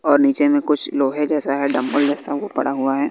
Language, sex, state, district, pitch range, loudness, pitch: Hindi, female, Bihar, West Champaran, 140-205 Hz, -19 LUFS, 145 Hz